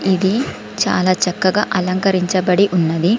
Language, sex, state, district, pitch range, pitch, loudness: Telugu, female, Telangana, Komaram Bheem, 180-195 Hz, 185 Hz, -16 LUFS